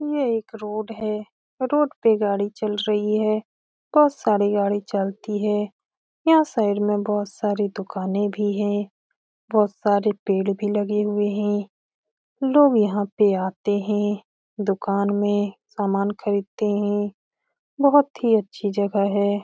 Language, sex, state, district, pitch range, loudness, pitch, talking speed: Hindi, female, Bihar, Saran, 205-215 Hz, -22 LUFS, 205 Hz, 140 wpm